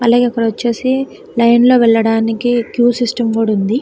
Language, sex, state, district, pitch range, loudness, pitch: Telugu, female, Telangana, Karimnagar, 225-245 Hz, -13 LUFS, 235 Hz